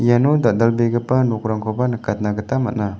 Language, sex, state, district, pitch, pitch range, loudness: Garo, male, Meghalaya, West Garo Hills, 115 Hz, 110-125 Hz, -19 LUFS